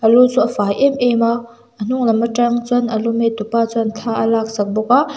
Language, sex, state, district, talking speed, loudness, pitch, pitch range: Mizo, female, Mizoram, Aizawl, 255 wpm, -16 LUFS, 230 Hz, 225-240 Hz